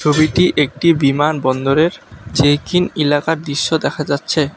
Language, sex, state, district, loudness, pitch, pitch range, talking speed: Bengali, male, West Bengal, Alipurduar, -15 LUFS, 150 Hz, 140-160 Hz, 130 wpm